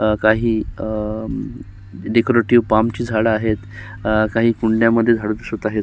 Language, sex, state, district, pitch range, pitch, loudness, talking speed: Marathi, male, Maharashtra, Solapur, 105-115 Hz, 110 Hz, -18 LUFS, 135 wpm